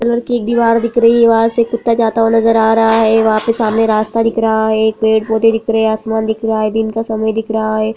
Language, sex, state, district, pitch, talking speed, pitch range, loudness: Hindi, female, Bihar, Bhagalpur, 225 Hz, 280 wpm, 220-230 Hz, -13 LUFS